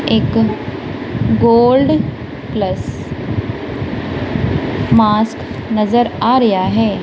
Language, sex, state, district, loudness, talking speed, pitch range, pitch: Punjabi, female, Punjab, Kapurthala, -15 LUFS, 70 wpm, 215-240 Hz, 225 Hz